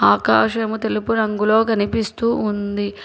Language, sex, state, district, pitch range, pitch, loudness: Telugu, female, Telangana, Hyderabad, 205-225 Hz, 215 Hz, -19 LUFS